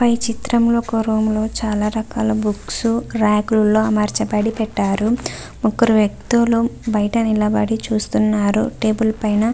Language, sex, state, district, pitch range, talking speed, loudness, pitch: Telugu, female, Andhra Pradesh, Visakhapatnam, 215-230 Hz, 125 wpm, -18 LUFS, 220 Hz